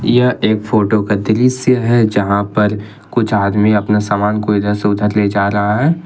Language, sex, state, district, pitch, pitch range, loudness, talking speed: Hindi, male, Jharkhand, Ranchi, 105 Hz, 105-110 Hz, -14 LUFS, 200 wpm